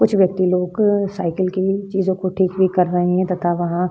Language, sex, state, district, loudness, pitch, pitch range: Hindi, female, Bihar, Vaishali, -18 LUFS, 185 Hz, 180-190 Hz